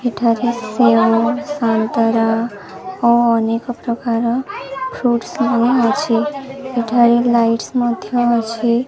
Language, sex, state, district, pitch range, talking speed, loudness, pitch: Odia, female, Odisha, Sambalpur, 230-245 Hz, 90 wpm, -16 LUFS, 235 Hz